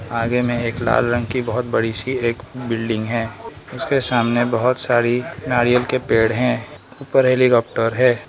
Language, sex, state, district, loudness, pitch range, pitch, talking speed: Hindi, male, Arunachal Pradesh, Lower Dibang Valley, -18 LUFS, 115-125 Hz, 120 Hz, 165 wpm